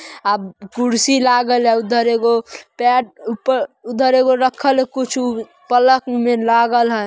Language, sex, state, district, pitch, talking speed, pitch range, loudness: Magahi, female, Bihar, Samastipur, 245 Hz, 135 wpm, 230-260 Hz, -16 LUFS